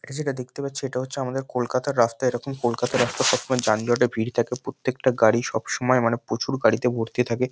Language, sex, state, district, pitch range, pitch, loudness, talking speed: Bengali, male, West Bengal, North 24 Parganas, 120-130 Hz, 125 Hz, -24 LUFS, 200 wpm